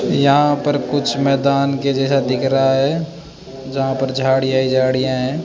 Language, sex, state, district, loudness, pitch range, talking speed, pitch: Hindi, male, Rajasthan, Jaipur, -17 LUFS, 130-140 Hz, 165 wpm, 135 Hz